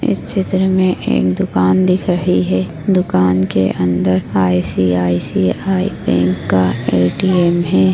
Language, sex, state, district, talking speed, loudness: Hindi, female, Maharashtra, Dhule, 120 wpm, -15 LUFS